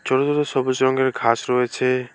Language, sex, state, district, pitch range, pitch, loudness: Bengali, male, West Bengal, Alipurduar, 125-130 Hz, 130 Hz, -20 LUFS